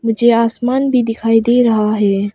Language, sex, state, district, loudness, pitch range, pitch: Hindi, female, Arunachal Pradesh, Papum Pare, -13 LUFS, 215-240 Hz, 230 Hz